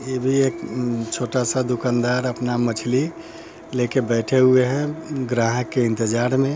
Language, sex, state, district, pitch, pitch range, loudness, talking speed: Hindi, male, Bihar, Muzaffarpur, 125 Hz, 120-130 Hz, -21 LUFS, 165 wpm